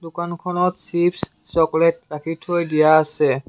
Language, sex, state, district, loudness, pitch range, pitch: Assamese, male, Assam, Kamrup Metropolitan, -19 LUFS, 155-175 Hz, 165 Hz